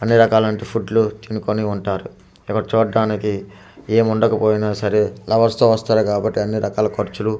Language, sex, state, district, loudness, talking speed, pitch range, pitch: Telugu, male, Andhra Pradesh, Manyam, -18 LUFS, 145 wpm, 105-110 Hz, 110 Hz